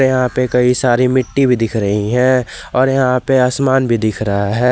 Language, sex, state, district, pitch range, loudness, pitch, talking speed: Hindi, male, Jharkhand, Garhwa, 115-130 Hz, -14 LUFS, 125 Hz, 215 wpm